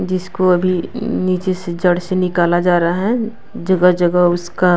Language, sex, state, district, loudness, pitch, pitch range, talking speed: Hindi, female, Bihar, West Champaran, -16 LUFS, 180 Hz, 175-185 Hz, 165 wpm